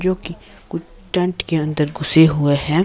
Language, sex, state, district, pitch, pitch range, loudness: Hindi, male, Himachal Pradesh, Shimla, 160 Hz, 150-180 Hz, -17 LUFS